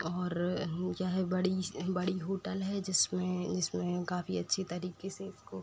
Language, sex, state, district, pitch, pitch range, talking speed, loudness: Hindi, female, Uttar Pradesh, Etah, 185 Hz, 180-190 Hz, 150 wpm, -34 LUFS